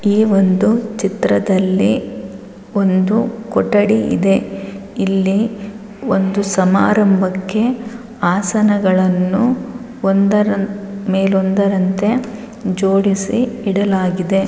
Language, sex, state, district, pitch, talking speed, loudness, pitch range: Kannada, female, Karnataka, Raichur, 200 Hz, 60 wpm, -16 LUFS, 195-220 Hz